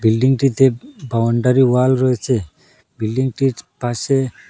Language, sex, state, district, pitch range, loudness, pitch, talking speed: Bengali, male, Assam, Hailakandi, 120-130 Hz, -17 LUFS, 125 Hz, 80 wpm